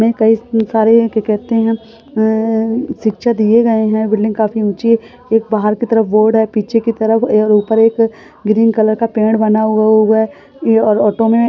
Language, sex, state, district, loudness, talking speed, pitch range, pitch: Hindi, female, Rajasthan, Churu, -13 LUFS, 180 wpm, 215-225 Hz, 220 Hz